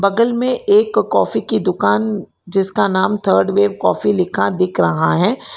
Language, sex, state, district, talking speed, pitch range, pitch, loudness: Hindi, female, Karnataka, Bangalore, 160 wpm, 180-235 Hz, 200 Hz, -16 LUFS